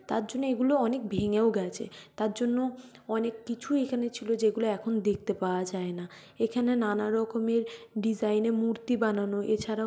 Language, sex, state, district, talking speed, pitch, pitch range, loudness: Bengali, female, West Bengal, North 24 Parganas, 165 wpm, 225 Hz, 210-235 Hz, -29 LUFS